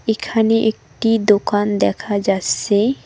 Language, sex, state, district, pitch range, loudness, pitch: Bengali, female, West Bengal, Cooch Behar, 205-225 Hz, -17 LUFS, 210 Hz